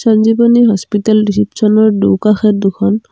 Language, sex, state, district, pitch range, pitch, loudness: Assamese, female, Assam, Kamrup Metropolitan, 210-220 Hz, 215 Hz, -11 LUFS